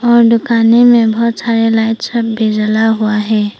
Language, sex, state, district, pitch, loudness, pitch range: Hindi, female, Arunachal Pradesh, Papum Pare, 225 Hz, -11 LUFS, 220-235 Hz